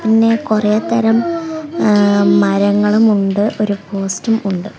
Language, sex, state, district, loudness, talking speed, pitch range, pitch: Malayalam, female, Kerala, Kasaragod, -14 LUFS, 115 wpm, 200-225 Hz, 210 Hz